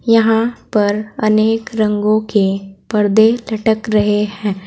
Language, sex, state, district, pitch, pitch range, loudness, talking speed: Hindi, female, Uttar Pradesh, Saharanpur, 215 Hz, 210-225 Hz, -15 LUFS, 115 wpm